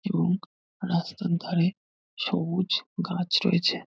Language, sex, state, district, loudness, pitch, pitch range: Bengali, male, West Bengal, North 24 Parganas, -27 LUFS, 185 Hz, 175-195 Hz